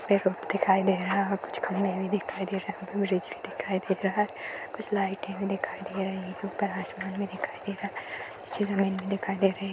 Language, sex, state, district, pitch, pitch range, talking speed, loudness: Hindi, female, Uttar Pradesh, Jalaun, 195 Hz, 190-200 Hz, 235 wpm, -30 LUFS